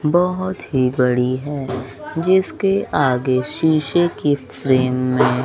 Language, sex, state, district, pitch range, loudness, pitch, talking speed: Hindi, male, Bihar, Kaimur, 130-175 Hz, -18 LUFS, 140 Hz, 120 wpm